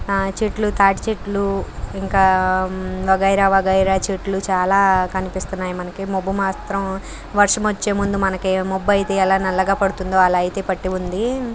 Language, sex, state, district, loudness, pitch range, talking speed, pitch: Telugu, female, Andhra Pradesh, Krishna, -19 LUFS, 190-200 Hz, 135 wpm, 195 Hz